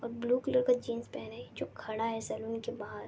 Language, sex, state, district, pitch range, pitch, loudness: Hindi, female, West Bengal, Jalpaiguri, 225-245 Hz, 235 Hz, -34 LUFS